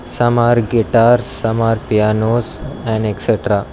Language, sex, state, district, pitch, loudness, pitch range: English, male, Karnataka, Bangalore, 115 Hz, -15 LUFS, 110-120 Hz